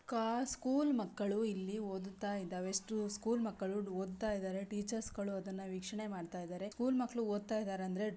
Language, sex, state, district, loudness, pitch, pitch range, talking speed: Kannada, female, Karnataka, Belgaum, -39 LUFS, 205 Hz, 190-220 Hz, 145 wpm